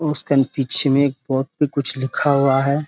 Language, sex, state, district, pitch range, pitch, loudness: Hindi, male, Jharkhand, Sahebganj, 135-145 Hz, 140 Hz, -18 LUFS